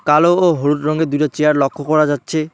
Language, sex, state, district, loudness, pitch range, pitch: Bengali, male, West Bengal, Alipurduar, -15 LUFS, 145-155 Hz, 150 Hz